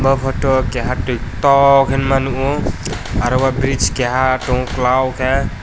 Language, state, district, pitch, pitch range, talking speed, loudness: Kokborok, Tripura, West Tripura, 130 Hz, 125-135 Hz, 150 wpm, -16 LUFS